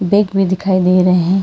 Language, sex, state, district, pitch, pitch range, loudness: Hindi, female, Karnataka, Bangalore, 190 Hz, 185-195 Hz, -13 LUFS